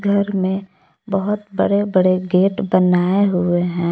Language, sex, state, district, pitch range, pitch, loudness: Hindi, female, Jharkhand, Palamu, 180-200 Hz, 190 Hz, -18 LUFS